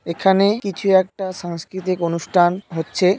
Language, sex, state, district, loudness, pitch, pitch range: Bengali, male, West Bengal, Malda, -19 LUFS, 185 Hz, 170-195 Hz